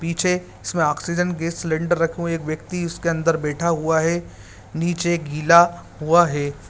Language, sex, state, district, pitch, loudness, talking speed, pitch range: Hindi, male, Bihar, Saran, 165 Hz, -21 LUFS, 160 wpm, 155-170 Hz